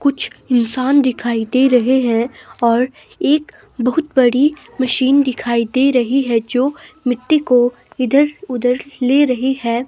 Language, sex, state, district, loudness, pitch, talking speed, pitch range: Hindi, female, Himachal Pradesh, Shimla, -16 LUFS, 255 Hz, 135 wpm, 245-275 Hz